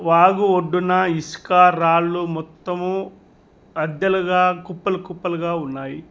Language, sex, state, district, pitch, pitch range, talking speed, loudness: Telugu, male, Telangana, Mahabubabad, 180 Hz, 165-185 Hz, 90 wpm, -19 LUFS